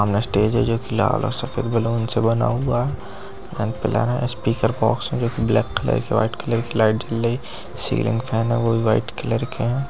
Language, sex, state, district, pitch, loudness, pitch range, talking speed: Hindi, male, Bihar, Begusarai, 115 Hz, -21 LUFS, 110-120 Hz, 220 wpm